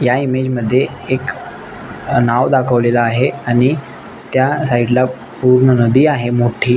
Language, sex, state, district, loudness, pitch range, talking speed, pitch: Marathi, male, Maharashtra, Nagpur, -14 LUFS, 120-130 Hz, 135 wpm, 125 Hz